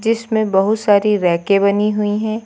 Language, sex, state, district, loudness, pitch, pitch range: Hindi, female, Uttar Pradesh, Lucknow, -16 LUFS, 210 Hz, 200-220 Hz